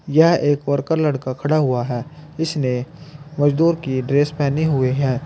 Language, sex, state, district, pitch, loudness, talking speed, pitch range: Hindi, male, Uttar Pradesh, Saharanpur, 145 Hz, -19 LUFS, 160 wpm, 130-155 Hz